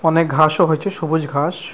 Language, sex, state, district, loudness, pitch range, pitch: Bengali, male, West Bengal, Purulia, -17 LUFS, 155-165 Hz, 160 Hz